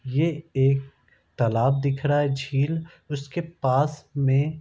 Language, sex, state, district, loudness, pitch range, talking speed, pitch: Hindi, male, Bihar, Darbhanga, -24 LUFS, 135-150 Hz, 145 wpm, 140 Hz